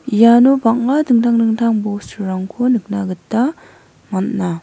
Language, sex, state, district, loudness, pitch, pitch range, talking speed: Garo, female, Meghalaya, West Garo Hills, -15 LUFS, 225 Hz, 200-240 Hz, 105 wpm